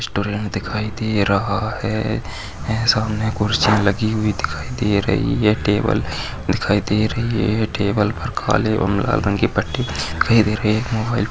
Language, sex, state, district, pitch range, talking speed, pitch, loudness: Hindi, male, Maharashtra, Aurangabad, 100-110 Hz, 180 wpm, 105 Hz, -19 LUFS